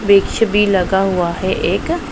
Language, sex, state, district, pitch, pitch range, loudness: Hindi, female, Punjab, Pathankot, 195 Hz, 185-205 Hz, -15 LUFS